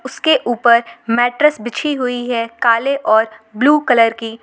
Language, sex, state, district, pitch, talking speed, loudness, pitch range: Hindi, female, Jharkhand, Garhwa, 240 Hz, 150 wpm, -15 LUFS, 230-270 Hz